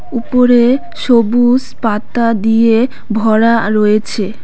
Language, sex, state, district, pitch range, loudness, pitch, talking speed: Bengali, female, West Bengal, Cooch Behar, 220-245 Hz, -12 LUFS, 230 Hz, 80 wpm